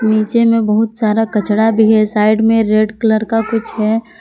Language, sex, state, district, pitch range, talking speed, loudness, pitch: Hindi, female, Jharkhand, Palamu, 215-225 Hz, 200 wpm, -13 LUFS, 220 Hz